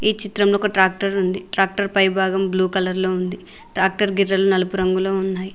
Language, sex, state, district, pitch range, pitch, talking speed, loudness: Telugu, female, Telangana, Mahabubabad, 185-195 Hz, 190 Hz, 175 wpm, -19 LUFS